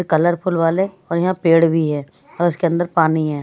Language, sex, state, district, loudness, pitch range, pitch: Hindi, male, Bihar, West Champaran, -17 LUFS, 160-175 Hz, 170 Hz